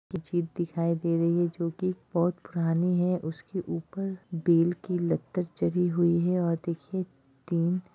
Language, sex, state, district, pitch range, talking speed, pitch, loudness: Hindi, female, Bihar, Jahanabad, 170-180 Hz, 165 wpm, 175 Hz, -28 LUFS